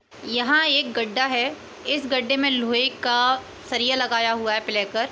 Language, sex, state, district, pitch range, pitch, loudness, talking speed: Hindi, female, Uttar Pradesh, Etah, 235-270 Hz, 250 Hz, -21 LUFS, 190 wpm